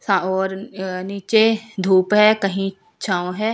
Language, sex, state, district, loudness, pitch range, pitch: Hindi, female, Delhi, New Delhi, -19 LUFS, 190-210 Hz, 195 Hz